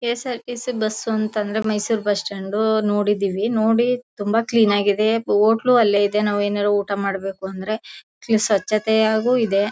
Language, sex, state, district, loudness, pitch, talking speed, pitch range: Kannada, female, Karnataka, Mysore, -20 LUFS, 215 Hz, 135 wpm, 205-225 Hz